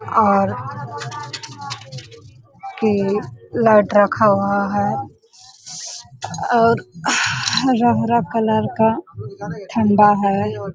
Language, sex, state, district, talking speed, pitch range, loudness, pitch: Hindi, female, Jharkhand, Sahebganj, 80 wpm, 145-220 Hz, -17 LUFS, 200 Hz